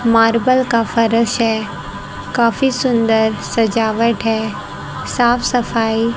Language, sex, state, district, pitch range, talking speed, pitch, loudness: Hindi, female, Haryana, Rohtak, 225-240 Hz, 95 wpm, 230 Hz, -16 LUFS